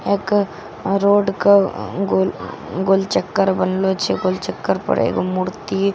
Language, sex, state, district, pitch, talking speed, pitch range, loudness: Maithili, female, Bihar, Katihar, 195 Hz, 130 wpm, 190-200 Hz, -19 LUFS